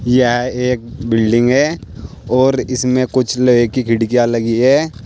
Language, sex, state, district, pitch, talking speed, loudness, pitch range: Hindi, male, Uttar Pradesh, Saharanpur, 125 Hz, 140 wpm, -14 LUFS, 120-130 Hz